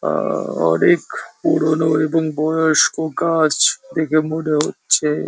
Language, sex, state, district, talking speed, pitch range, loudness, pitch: Bengali, male, West Bengal, Jhargram, 100 wpm, 155-165 Hz, -17 LUFS, 160 Hz